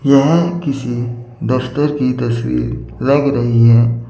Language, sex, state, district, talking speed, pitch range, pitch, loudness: Hindi, male, Chandigarh, Chandigarh, 115 wpm, 115-140 Hz, 120 Hz, -15 LUFS